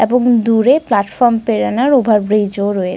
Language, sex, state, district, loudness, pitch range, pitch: Bengali, female, Jharkhand, Sahebganj, -13 LUFS, 205-245 Hz, 225 Hz